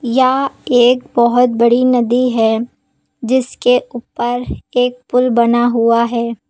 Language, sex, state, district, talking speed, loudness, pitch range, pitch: Hindi, female, Uttar Pradesh, Lucknow, 120 wpm, -14 LUFS, 235-250 Hz, 245 Hz